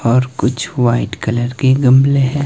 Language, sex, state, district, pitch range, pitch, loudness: Hindi, male, Himachal Pradesh, Shimla, 120-135 Hz, 130 Hz, -14 LUFS